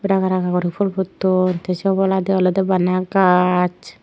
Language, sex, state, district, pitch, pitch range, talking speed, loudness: Chakma, female, Tripura, Unakoti, 185 Hz, 180-190 Hz, 165 wpm, -18 LUFS